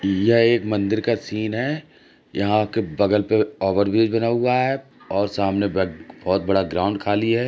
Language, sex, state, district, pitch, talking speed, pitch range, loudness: Hindi, male, Uttar Pradesh, Jalaun, 105 Hz, 185 wpm, 100-115 Hz, -21 LUFS